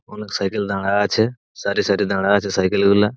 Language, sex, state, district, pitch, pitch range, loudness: Bengali, male, West Bengal, Purulia, 100 Hz, 100-105 Hz, -19 LUFS